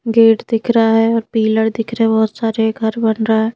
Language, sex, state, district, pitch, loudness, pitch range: Hindi, female, Madhya Pradesh, Bhopal, 225 Hz, -15 LUFS, 220-225 Hz